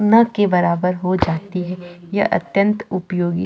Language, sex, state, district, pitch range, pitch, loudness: Hindi, female, Chhattisgarh, Jashpur, 175-205 Hz, 185 Hz, -19 LUFS